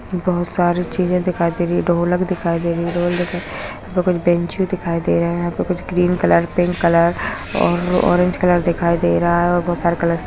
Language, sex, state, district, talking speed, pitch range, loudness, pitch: Hindi, female, Bihar, Muzaffarpur, 240 wpm, 170-180 Hz, -18 LUFS, 175 Hz